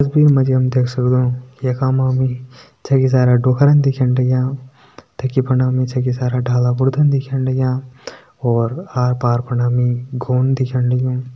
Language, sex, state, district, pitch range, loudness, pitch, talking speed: Hindi, male, Uttarakhand, Tehri Garhwal, 125-130 Hz, -17 LUFS, 130 Hz, 165 wpm